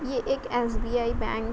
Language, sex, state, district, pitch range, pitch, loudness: Hindi, female, Uttar Pradesh, Varanasi, 230-255 Hz, 240 Hz, -28 LUFS